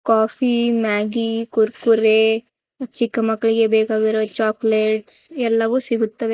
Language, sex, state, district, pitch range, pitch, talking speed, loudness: Kannada, female, Karnataka, Chamarajanagar, 220-230 Hz, 225 Hz, 85 wpm, -19 LUFS